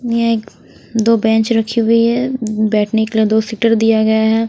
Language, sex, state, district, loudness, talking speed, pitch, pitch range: Hindi, female, Haryana, Rohtak, -14 LUFS, 185 wpm, 225 Hz, 220-230 Hz